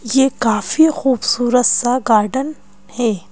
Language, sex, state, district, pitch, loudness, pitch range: Hindi, female, Madhya Pradesh, Bhopal, 250 Hz, -15 LUFS, 235-270 Hz